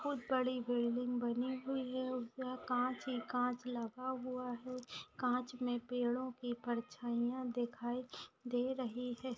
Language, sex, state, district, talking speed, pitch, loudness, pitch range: Hindi, female, Maharashtra, Aurangabad, 140 wpm, 250 Hz, -40 LUFS, 240-255 Hz